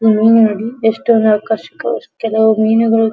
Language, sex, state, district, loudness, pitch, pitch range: Kannada, female, Karnataka, Dharwad, -13 LUFS, 220 Hz, 220-225 Hz